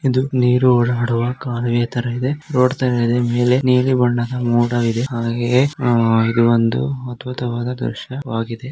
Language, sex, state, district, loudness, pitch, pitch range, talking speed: Kannada, male, Karnataka, Dharwad, -18 LUFS, 120 Hz, 120-125 Hz, 70 wpm